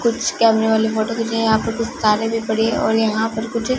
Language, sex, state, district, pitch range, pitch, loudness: Hindi, female, Punjab, Fazilka, 220-230 Hz, 225 Hz, -18 LUFS